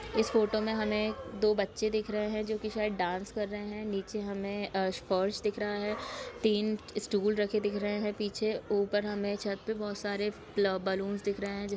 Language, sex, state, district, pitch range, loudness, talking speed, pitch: Hindi, female, Bihar, Samastipur, 200-215 Hz, -33 LUFS, 210 wpm, 210 Hz